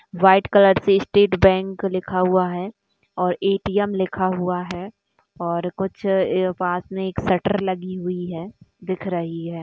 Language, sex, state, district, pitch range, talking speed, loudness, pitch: Hindi, female, Bihar, Bhagalpur, 180-195 Hz, 160 wpm, -21 LUFS, 185 Hz